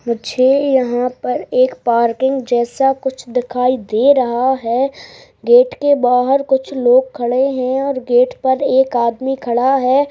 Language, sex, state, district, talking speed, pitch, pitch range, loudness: Hindi, female, Bihar, Bhagalpur, 150 wpm, 260 Hz, 245-270 Hz, -15 LUFS